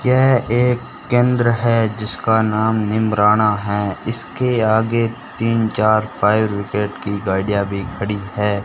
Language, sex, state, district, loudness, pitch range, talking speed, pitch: Hindi, male, Rajasthan, Bikaner, -17 LUFS, 105-115 Hz, 130 wpm, 110 Hz